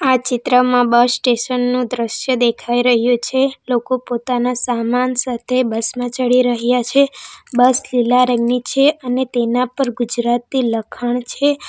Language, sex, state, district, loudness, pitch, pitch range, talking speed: Gujarati, female, Gujarat, Valsad, -16 LUFS, 245 Hz, 240-255 Hz, 145 wpm